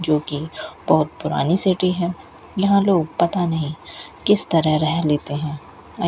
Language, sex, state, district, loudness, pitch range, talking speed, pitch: Hindi, female, Rajasthan, Bikaner, -20 LUFS, 150-185 Hz, 150 wpm, 160 Hz